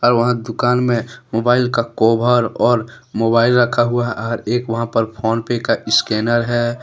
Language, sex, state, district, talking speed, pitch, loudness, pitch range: Hindi, male, Jharkhand, Deoghar, 185 wpm, 120 Hz, -17 LUFS, 115-120 Hz